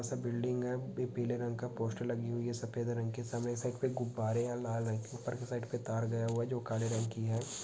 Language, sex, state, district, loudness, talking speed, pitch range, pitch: Hindi, male, Bihar, Sitamarhi, -37 LUFS, 260 wpm, 115-120 Hz, 120 Hz